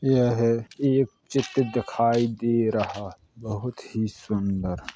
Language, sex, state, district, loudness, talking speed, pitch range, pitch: Hindi, male, Uttar Pradesh, Jalaun, -25 LUFS, 135 wpm, 105-120 Hz, 115 Hz